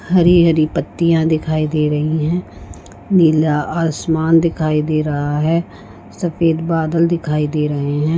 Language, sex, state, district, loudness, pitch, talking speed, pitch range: Hindi, female, Goa, North and South Goa, -16 LUFS, 155 Hz, 140 wpm, 150-165 Hz